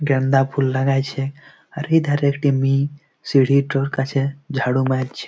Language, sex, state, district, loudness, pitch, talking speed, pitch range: Bengali, male, West Bengal, Jalpaiguri, -19 LUFS, 135 Hz, 145 wpm, 135-140 Hz